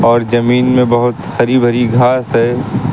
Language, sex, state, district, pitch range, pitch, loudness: Hindi, male, Uttar Pradesh, Lucknow, 120-125 Hz, 120 Hz, -12 LUFS